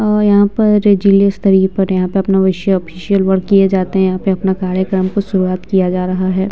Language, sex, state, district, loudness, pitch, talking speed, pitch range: Hindi, female, Bihar, Vaishali, -13 LUFS, 190 Hz, 230 wpm, 185-200 Hz